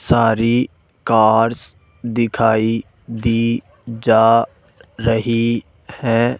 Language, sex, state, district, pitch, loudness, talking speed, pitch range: Hindi, male, Rajasthan, Jaipur, 115 Hz, -17 LUFS, 65 wpm, 110-115 Hz